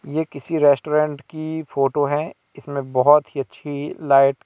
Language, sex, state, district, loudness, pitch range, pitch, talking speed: Hindi, male, Madhya Pradesh, Katni, -20 LUFS, 140-150 Hz, 145 Hz, 160 wpm